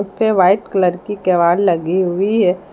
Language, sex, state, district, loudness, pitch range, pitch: Hindi, female, Jharkhand, Palamu, -15 LUFS, 180-200 Hz, 185 Hz